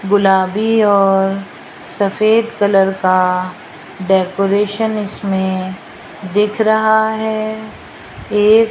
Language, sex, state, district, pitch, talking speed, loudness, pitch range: Hindi, female, Rajasthan, Jaipur, 200 Hz, 85 wpm, -15 LUFS, 190-220 Hz